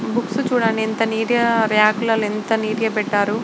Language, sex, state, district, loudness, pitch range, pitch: Telugu, female, Andhra Pradesh, Srikakulam, -19 LUFS, 215-230 Hz, 225 Hz